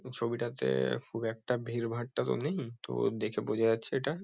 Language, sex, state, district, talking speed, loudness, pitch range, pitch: Bengali, male, West Bengal, Kolkata, 170 wpm, -33 LUFS, 115-125 Hz, 115 Hz